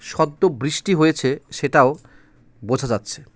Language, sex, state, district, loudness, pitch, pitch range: Bengali, male, West Bengal, Cooch Behar, -20 LUFS, 150 Hz, 140-160 Hz